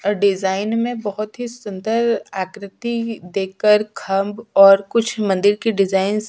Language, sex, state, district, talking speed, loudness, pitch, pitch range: Hindi, female, Chhattisgarh, Sukma, 145 wpm, -19 LUFS, 205 Hz, 195-225 Hz